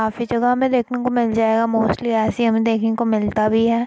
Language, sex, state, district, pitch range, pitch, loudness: Hindi, female, Uttar Pradesh, Etah, 220-235 Hz, 230 Hz, -19 LUFS